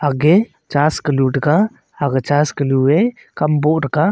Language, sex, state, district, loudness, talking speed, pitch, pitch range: Wancho, male, Arunachal Pradesh, Longding, -16 LUFS, 130 wpm, 150 Hz, 140-160 Hz